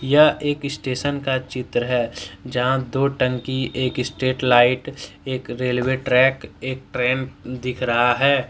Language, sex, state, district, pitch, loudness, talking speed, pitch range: Hindi, male, Jharkhand, Deoghar, 130 Hz, -21 LUFS, 165 wpm, 125-135 Hz